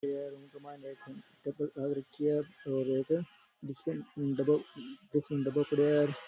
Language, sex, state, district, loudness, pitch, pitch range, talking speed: Rajasthani, male, Rajasthan, Nagaur, -33 LUFS, 145 Hz, 140-150 Hz, 95 wpm